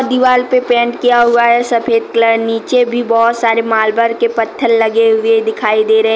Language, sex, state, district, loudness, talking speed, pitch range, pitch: Hindi, female, Jharkhand, Deoghar, -12 LUFS, 195 wpm, 225-240 Hz, 230 Hz